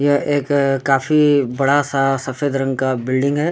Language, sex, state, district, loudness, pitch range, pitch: Hindi, male, Bihar, Darbhanga, -17 LUFS, 135-145 Hz, 140 Hz